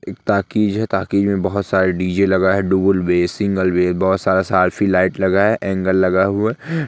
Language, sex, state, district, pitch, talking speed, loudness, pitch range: Hindi, male, Rajasthan, Nagaur, 95 Hz, 210 wpm, -17 LUFS, 95-100 Hz